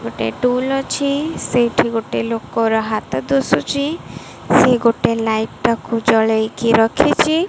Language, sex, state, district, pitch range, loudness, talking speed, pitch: Odia, female, Odisha, Malkangiri, 225-270 Hz, -17 LUFS, 110 wpm, 230 Hz